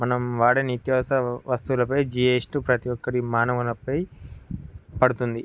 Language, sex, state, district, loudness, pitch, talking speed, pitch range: Telugu, male, Andhra Pradesh, Guntur, -24 LUFS, 125 Hz, 110 wpm, 120-130 Hz